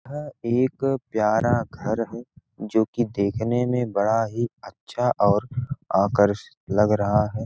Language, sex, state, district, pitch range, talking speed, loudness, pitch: Hindi, male, Bihar, Gopalganj, 105-125 Hz, 135 wpm, -23 LUFS, 115 Hz